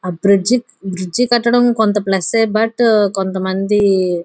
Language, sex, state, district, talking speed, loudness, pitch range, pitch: Telugu, female, Andhra Pradesh, Guntur, 140 wpm, -15 LUFS, 190-225 Hz, 200 Hz